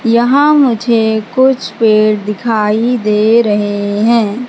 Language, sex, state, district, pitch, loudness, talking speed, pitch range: Hindi, female, Madhya Pradesh, Katni, 225 Hz, -11 LUFS, 105 wpm, 210-240 Hz